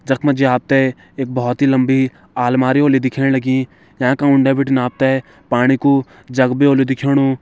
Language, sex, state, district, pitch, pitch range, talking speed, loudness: Garhwali, male, Uttarakhand, Tehri Garhwal, 135 Hz, 130-135 Hz, 180 wpm, -15 LUFS